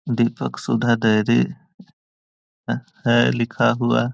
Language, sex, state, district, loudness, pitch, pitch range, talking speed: Hindi, male, Bihar, Jahanabad, -20 LUFS, 115 Hz, 110-120 Hz, 115 wpm